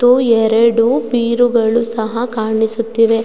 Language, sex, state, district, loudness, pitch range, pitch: Kannada, female, Karnataka, Mysore, -14 LUFS, 225-240 Hz, 230 Hz